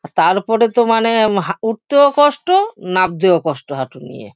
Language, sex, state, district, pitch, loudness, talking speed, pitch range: Bengali, female, West Bengal, Kolkata, 215 Hz, -15 LUFS, 150 wpm, 170-235 Hz